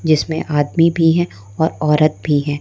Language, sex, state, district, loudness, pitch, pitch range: Hindi, female, Madhya Pradesh, Umaria, -16 LUFS, 155 Hz, 145-160 Hz